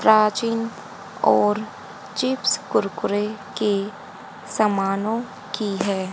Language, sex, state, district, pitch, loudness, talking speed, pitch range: Hindi, female, Haryana, Rohtak, 210 Hz, -23 LUFS, 80 wpm, 200-225 Hz